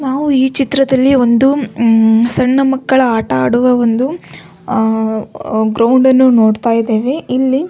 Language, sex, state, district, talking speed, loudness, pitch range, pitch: Kannada, female, Karnataka, Belgaum, 125 wpm, -12 LUFS, 225-265 Hz, 250 Hz